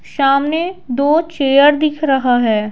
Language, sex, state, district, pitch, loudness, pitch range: Hindi, female, Bihar, Patna, 280 Hz, -14 LUFS, 265-305 Hz